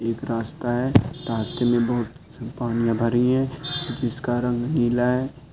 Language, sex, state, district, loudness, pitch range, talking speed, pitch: Hindi, male, Chhattisgarh, Korba, -23 LUFS, 115-130 Hz, 140 wpm, 120 Hz